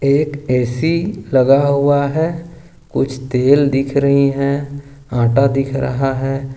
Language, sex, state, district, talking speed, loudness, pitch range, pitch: Hindi, male, Jharkhand, Ranchi, 130 wpm, -16 LUFS, 135-145 Hz, 140 Hz